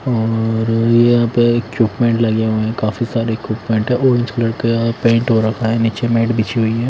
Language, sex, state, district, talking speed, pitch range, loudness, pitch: Hindi, male, Himachal Pradesh, Shimla, 200 wpm, 110-120 Hz, -16 LUFS, 115 Hz